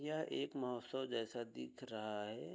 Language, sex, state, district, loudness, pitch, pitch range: Hindi, male, Uttar Pradesh, Budaun, -44 LUFS, 120 Hz, 110-130 Hz